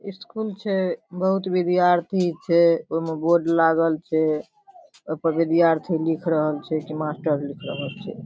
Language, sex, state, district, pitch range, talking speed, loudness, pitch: Maithili, female, Bihar, Darbhanga, 160-185 Hz, 150 wpm, -22 LUFS, 165 Hz